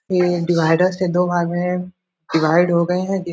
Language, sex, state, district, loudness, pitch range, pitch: Hindi, male, Bihar, Supaul, -18 LUFS, 170-180 Hz, 175 Hz